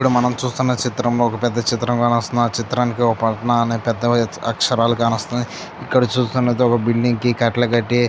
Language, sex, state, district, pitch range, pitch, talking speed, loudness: Telugu, male, Andhra Pradesh, Chittoor, 115-125 Hz, 120 Hz, 180 wpm, -18 LUFS